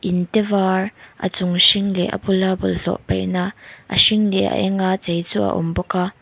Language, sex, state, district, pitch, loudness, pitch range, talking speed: Mizo, female, Mizoram, Aizawl, 190 Hz, -19 LUFS, 180-195 Hz, 190 wpm